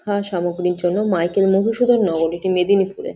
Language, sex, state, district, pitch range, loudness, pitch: Bengali, female, West Bengal, Jhargram, 175-205 Hz, -18 LUFS, 190 Hz